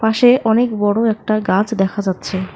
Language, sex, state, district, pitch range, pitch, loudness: Bengali, female, West Bengal, Alipurduar, 195-225 Hz, 215 Hz, -16 LUFS